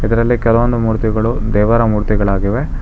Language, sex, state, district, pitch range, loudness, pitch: Kannada, male, Karnataka, Bangalore, 105-115 Hz, -15 LUFS, 110 Hz